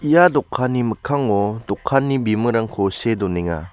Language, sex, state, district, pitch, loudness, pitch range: Garo, male, Meghalaya, West Garo Hills, 115 Hz, -19 LUFS, 100-130 Hz